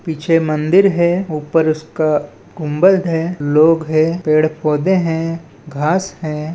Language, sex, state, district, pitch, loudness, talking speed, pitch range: Hindi, male, Chhattisgarh, Balrampur, 155 Hz, -15 LUFS, 120 wpm, 155-170 Hz